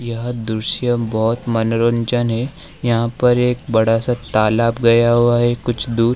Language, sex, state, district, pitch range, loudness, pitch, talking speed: Hindi, male, Uttar Pradesh, Lalitpur, 115-120 Hz, -17 LUFS, 115 Hz, 155 wpm